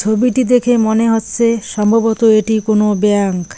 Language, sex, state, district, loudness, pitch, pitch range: Bengali, female, West Bengal, Cooch Behar, -13 LUFS, 220 Hz, 210-230 Hz